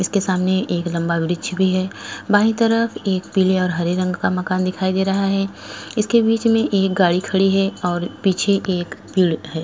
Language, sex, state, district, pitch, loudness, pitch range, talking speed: Hindi, female, Goa, North and South Goa, 190 Hz, -19 LUFS, 180-195 Hz, 195 wpm